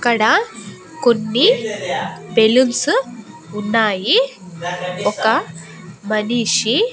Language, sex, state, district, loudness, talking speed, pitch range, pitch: Telugu, female, Andhra Pradesh, Annamaya, -17 LUFS, 50 wpm, 190-240 Hz, 220 Hz